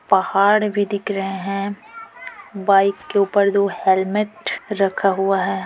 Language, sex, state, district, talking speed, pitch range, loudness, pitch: Hindi, female, Chhattisgarh, Korba, 140 wpm, 195-205 Hz, -19 LUFS, 200 Hz